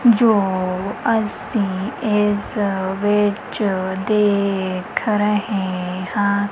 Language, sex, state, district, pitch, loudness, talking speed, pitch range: Punjabi, female, Punjab, Kapurthala, 205 Hz, -19 LUFS, 65 wpm, 190-210 Hz